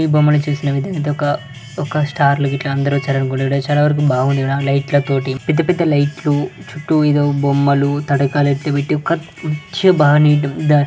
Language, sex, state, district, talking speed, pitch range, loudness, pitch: Telugu, male, Telangana, Karimnagar, 165 wpm, 140-150 Hz, -16 LUFS, 145 Hz